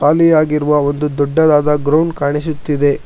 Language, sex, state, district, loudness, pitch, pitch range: Kannada, male, Karnataka, Bangalore, -14 LUFS, 150 Hz, 145-155 Hz